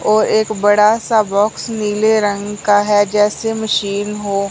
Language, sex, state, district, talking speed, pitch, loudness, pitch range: Hindi, male, Punjab, Fazilka, 160 wpm, 210 Hz, -15 LUFS, 205-215 Hz